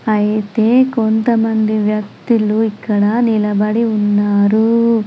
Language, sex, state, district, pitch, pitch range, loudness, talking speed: Telugu, female, Telangana, Adilabad, 215 Hz, 210-225 Hz, -14 LUFS, 70 wpm